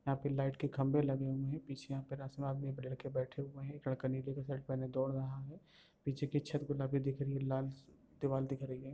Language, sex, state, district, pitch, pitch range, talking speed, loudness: Hindi, female, Bihar, Darbhanga, 135 Hz, 135-140 Hz, 235 wpm, -40 LUFS